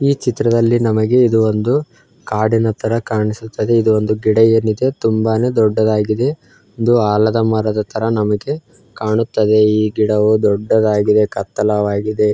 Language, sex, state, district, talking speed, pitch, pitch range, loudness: Kannada, male, Karnataka, Chamarajanagar, 115 wpm, 110 Hz, 105-115 Hz, -15 LUFS